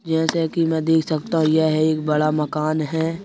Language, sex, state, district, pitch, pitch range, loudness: Hindi, male, Madhya Pradesh, Bhopal, 160 Hz, 155-160 Hz, -20 LUFS